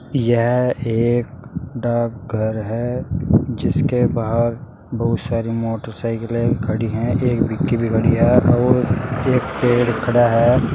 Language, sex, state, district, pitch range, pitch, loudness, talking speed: Hindi, male, Uttar Pradesh, Saharanpur, 115-125 Hz, 120 Hz, -18 LUFS, 115 wpm